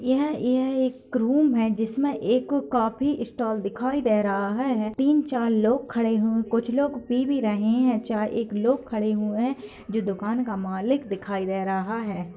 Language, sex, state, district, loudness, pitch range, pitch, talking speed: Hindi, female, Bihar, Kishanganj, -25 LUFS, 215-255 Hz, 230 Hz, 180 wpm